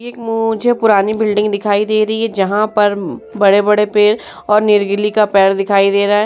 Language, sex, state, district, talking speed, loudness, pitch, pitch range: Hindi, female, Uttar Pradesh, Muzaffarnagar, 190 wpm, -13 LUFS, 210 Hz, 200-215 Hz